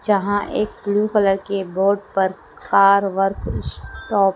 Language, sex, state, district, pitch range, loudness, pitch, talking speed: Hindi, female, Madhya Pradesh, Dhar, 195-205 Hz, -19 LUFS, 200 Hz, 150 wpm